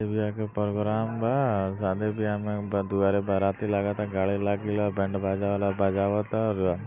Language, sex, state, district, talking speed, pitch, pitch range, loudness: Maithili, male, Bihar, Samastipur, 185 wpm, 100 Hz, 100-105 Hz, -27 LUFS